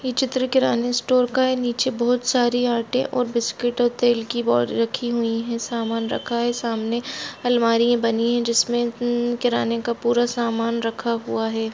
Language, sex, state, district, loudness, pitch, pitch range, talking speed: Hindi, female, Bihar, Bhagalpur, -21 LUFS, 240 Hz, 230-245 Hz, 180 wpm